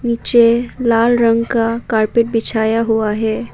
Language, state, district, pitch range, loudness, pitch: Hindi, Arunachal Pradesh, Papum Pare, 225-235 Hz, -15 LUFS, 230 Hz